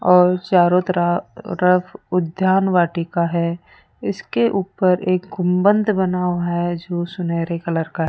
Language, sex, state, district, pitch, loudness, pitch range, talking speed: Hindi, female, Rajasthan, Jaipur, 180 Hz, -19 LUFS, 175-185 Hz, 135 wpm